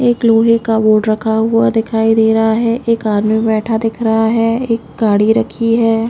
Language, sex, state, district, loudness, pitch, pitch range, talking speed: Hindi, female, Chhattisgarh, Raigarh, -13 LUFS, 225 Hz, 220-230 Hz, 185 wpm